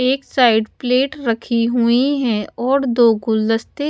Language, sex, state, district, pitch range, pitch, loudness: Hindi, female, Haryana, Charkhi Dadri, 230-265 Hz, 240 Hz, -17 LUFS